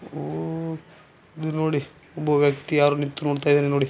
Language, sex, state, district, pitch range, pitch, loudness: Kannada, male, Karnataka, Bijapur, 140-155 Hz, 145 Hz, -23 LUFS